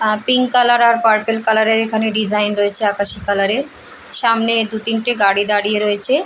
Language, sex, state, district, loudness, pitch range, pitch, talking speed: Bengali, female, West Bengal, Paschim Medinipur, -14 LUFS, 210-230 Hz, 220 Hz, 190 wpm